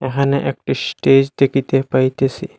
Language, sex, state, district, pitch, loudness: Bengali, male, Assam, Hailakandi, 135 Hz, -17 LUFS